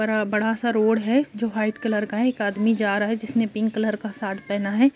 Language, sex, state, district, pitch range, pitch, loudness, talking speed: Hindi, male, Bihar, Gopalganj, 210-225 Hz, 220 Hz, -23 LUFS, 265 wpm